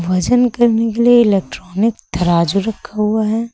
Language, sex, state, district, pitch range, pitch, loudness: Hindi, female, Uttar Pradesh, Lucknow, 190-235 Hz, 220 Hz, -15 LUFS